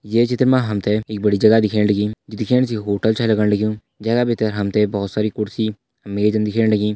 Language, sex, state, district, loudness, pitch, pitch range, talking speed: Hindi, male, Uttarakhand, Uttarkashi, -19 LUFS, 105 Hz, 105-110 Hz, 225 wpm